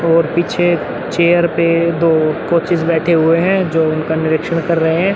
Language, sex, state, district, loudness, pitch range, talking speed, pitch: Hindi, male, Uttar Pradesh, Muzaffarnagar, -14 LUFS, 160-170 Hz, 175 wpm, 170 Hz